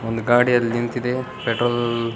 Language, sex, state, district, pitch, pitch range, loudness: Kannada, male, Karnataka, Bellary, 120 Hz, 115-125 Hz, -20 LUFS